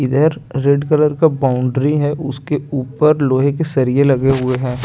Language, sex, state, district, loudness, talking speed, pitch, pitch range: Hindi, male, Chandigarh, Chandigarh, -16 LUFS, 175 wpm, 140 Hz, 130-150 Hz